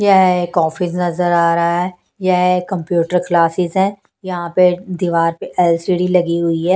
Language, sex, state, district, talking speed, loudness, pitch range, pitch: Hindi, female, Punjab, Pathankot, 160 wpm, -16 LUFS, 170-185 Hz, 180 Hz